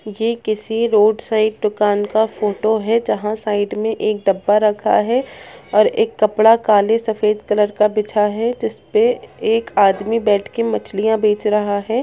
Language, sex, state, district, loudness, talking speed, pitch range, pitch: Bhojpuri, female, Bihar, Saran, -17 LUFS, 165 wpm, 210-225 Hz, 215 Hz